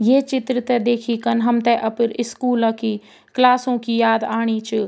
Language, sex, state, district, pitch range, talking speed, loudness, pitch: Garhwali, female, Uttarakhand, Tehri Garhwal, 225-245 Hz, 170 wpm, -19 LUFS, 235 Hz